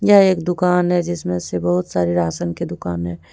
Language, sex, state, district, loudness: Hindi, female, Jharkhand, Deoghar, -19 LUFS